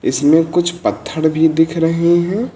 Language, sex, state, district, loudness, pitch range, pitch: Hindi, male, Uttar Pradesh, Lucknow, -15 LUFS, 160-175 Hz, 165 Hz